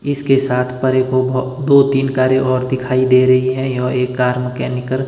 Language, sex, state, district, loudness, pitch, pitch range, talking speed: Hindi, male, Himachal Pradesh, Shimla, -15 LUFS, 130 Hz, 125-130 Hz, 200 wpm